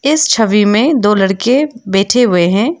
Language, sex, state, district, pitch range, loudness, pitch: Hindi, female, Arunachal Pradesh, Lower Dibang Valley, 200-275 Hz, -11 LUFS, 220 Hz